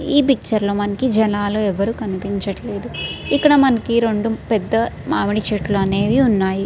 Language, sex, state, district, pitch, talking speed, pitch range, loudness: Telugu, female, Andhra Pradesh, Srikakulam, 215 Hz, 125 wpm, 200-230 Hz, -18 LUFS